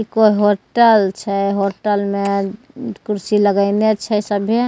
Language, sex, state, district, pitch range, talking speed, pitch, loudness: Maithili, female, Bihar, Begusarai, 200-220 Hz, 130 wpm, 205 Hz, -16 LUFS